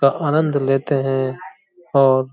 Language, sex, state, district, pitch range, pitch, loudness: Hindi, male, Uttar Pradesh, Hamirpur, 135-155 Hz, 140 Hz, -18 LUFS